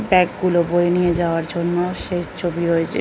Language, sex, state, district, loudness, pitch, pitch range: Bengali, female, West Bengal, North 24 Parganas, -19 LUFS, 175 Hz, 170-180 Hz